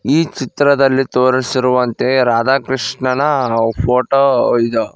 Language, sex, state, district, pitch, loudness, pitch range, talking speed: Kannada, male, Karnataka, Koppal, 130 Hz, -14 LUFS, 120-135 Hz, 75 wpm